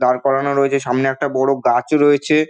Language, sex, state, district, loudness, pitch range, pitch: Bengali, male, West Bengal, Dakshin Dinajpur, -16 LUFS, 130-145 Hz, 135 Hz